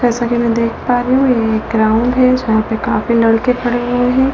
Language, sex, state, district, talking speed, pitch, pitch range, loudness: Hindi, female, Delhi, New Delhi, 235 wpm, 240 Hz, 225-250 Hz, -14 LUFS